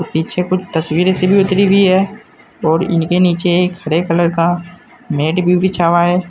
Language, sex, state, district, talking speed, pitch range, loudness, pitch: Hindi, male, Uttar Pradesh, Saharanpur, 190 wpm, 170-185 Hz, -14 LUFS, 180 Hz